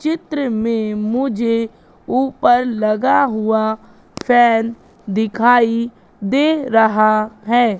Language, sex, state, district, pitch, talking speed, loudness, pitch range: Hindi, female, Madhya Pradesh, Katni, 230 Hz, 85 wpm, -16 LUFS, 220-250 Hz